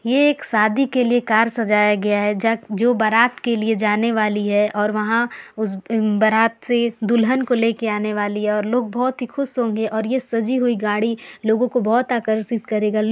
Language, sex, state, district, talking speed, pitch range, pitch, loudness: Hindi, female, Uttar Pradesh, Varanasi, 215 wpm, 215-240 Hz, 225 Hz, -19 LUFS